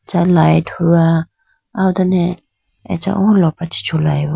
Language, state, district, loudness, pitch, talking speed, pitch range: Idu Mishmi, Arunachal Pradesh, Lower Dibang Valley, -15 LUFS, 175 Hz, 150 wpm, 160-190 Hz